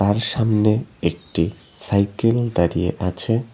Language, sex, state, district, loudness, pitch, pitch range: Bengali, male, West Bengal, Cooch Behar, -20 LUFS, 105 Hz, 100-115 Hz